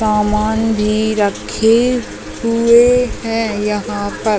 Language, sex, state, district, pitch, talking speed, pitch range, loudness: Hindi, female, Chhattisgarh, Raigarh, 220 Hz, 95 wpm, 210-230 Hz, -15 LUFS